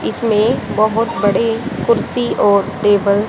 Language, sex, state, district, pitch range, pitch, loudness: Hindi, female, Haryana, Rohtak, 205-230 Hz, 215 Hz, -15 LUFS